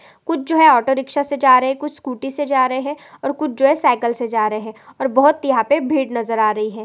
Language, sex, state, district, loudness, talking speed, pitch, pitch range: Hindi, female, Goa, North and South Goa, -17 LUFS, 260 wpm, 270 Hz, 235-290 Hz